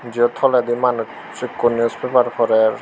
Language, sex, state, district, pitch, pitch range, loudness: Chakma, male, Tripura, Unakoti, 120 Hz, 115-125 Hz, -18 LUFS